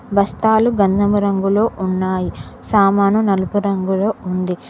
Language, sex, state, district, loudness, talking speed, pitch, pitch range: Telugu, female, Telangana, Mahabubabad, -17 LUFS, 90 wpm, 200 Hz, 190-205 Hz